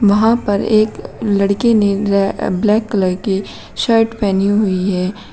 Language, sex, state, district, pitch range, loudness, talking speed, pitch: Hindi, female, Uttar Pradesh, Shamli, 195-215 Hz, -15 LUFS, 135 wpm, 205 Hz